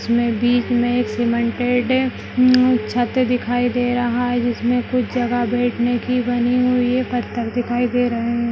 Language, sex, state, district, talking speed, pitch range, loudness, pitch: Hindi, female, Bihar, Madhepura, 170 wpm, 240-245 Hz, -19 LUFS, 245 Hz